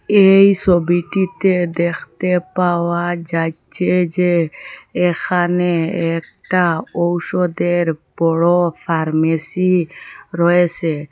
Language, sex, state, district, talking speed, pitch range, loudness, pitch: Bengali, female, Assam, Hailakandi, 65 wpm, 165-180 Hz, -17 LUFS, 175 Hz